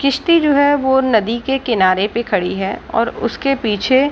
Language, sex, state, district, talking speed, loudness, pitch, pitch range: Hindi, female, Bihar, Gaya, 190 wpm, -16 LUFS, 255 Hz, 210-275 Hz